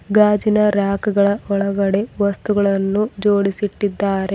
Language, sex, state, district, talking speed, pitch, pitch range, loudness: Kannada, female, Karnataka, Bidar, 95 wpm, 200 Hz, 200-210 Hz, -18 LUFS